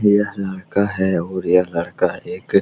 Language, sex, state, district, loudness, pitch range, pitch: Hindi, male, Bihar, Araria, -20 LUFS, 90-100 Hz, 95 Hz